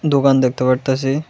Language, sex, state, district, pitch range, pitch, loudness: Bengali, female, Tripura, West Tripura, 130-140 Hz, 135 Hz, -16 LUFS